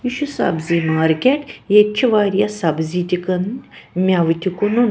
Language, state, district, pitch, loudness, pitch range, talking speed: Kashmiri, Punjab, Kapurthala, 190 Hz, -17 LUFS, 170-230 Hz, 135 wpm